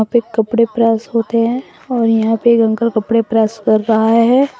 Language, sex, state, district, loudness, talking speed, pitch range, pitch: Hindi, female, Assam, Sonitpur, -14 LUFS, 185 wpm, 220-235 Hz, 230 Hz